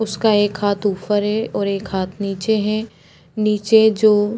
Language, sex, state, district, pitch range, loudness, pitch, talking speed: Hindi, female, Uttarakhand, Tehri Garhwal, 200-220 Hz, -18 LUFS, 210 Hz, 180 wpm